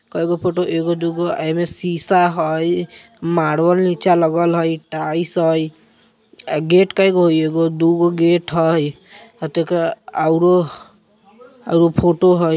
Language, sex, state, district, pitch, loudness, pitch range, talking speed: Bajjika, male, Bihar, Vaishali, 170 Hz, -17 LUFS, 165-180 Hz, 100 wpm